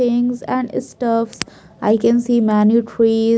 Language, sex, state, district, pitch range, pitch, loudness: English, female, Maharashtra, Mumbai Suburban, 225-240 Hz, 230 Hz, -17 LUFS